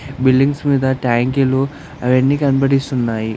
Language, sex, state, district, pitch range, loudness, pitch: Telugu, male, Andhra Pradesh, Anantapur, 125-140 Hz, -16 LUFS, 135 Hz